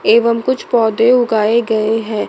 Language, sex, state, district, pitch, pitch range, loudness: Hindi, female, Chandigarh, Chandigarh, 225 Hz, 220-235 Hz, -14 LUFS